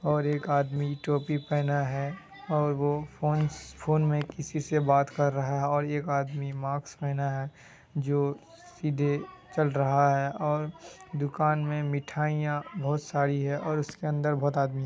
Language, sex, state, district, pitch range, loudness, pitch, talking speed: Hindi, male, Bihar, Kishanganj, 140-150 Hz, -29 LUFS, 145 Hz, 175 wpm